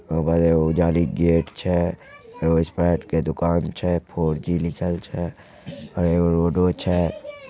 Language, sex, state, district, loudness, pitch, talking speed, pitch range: Maithili, male, Bihar, Begusarai, -22 LUFS, 85 Hz, 145 wpm, 80-85 Hz